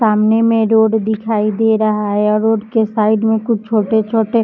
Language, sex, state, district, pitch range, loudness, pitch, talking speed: Hindi, female, Uttar Pradesh, Jyotiba Phule Nagar, 215-225 Hz, -14 LUFS, 220 Hz, 205 wpm